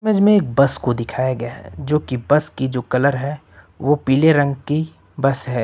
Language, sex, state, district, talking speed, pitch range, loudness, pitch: Hindi, male, Uttar Pradesh, Lucknow, 225 wpm, 130-150 Hz, -18 LUFS, 140 Hz